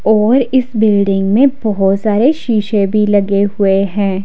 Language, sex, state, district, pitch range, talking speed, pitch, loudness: Hindi, female, Himachal Pradesh, Shimla, 200-225 Hz, 155 wpm, 210 Hz, -13 LUFS